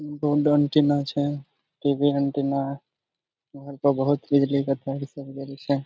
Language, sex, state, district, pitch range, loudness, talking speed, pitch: Maithili, male, Bihar, Supaul, 140-145 Hz, -24 LUFS, 70 wpm, 140 Hz